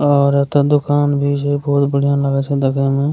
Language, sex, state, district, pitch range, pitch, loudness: Maithili, male, Bihar, Begusarai, 140-145 Hz, 140 Hz, -16 LUFS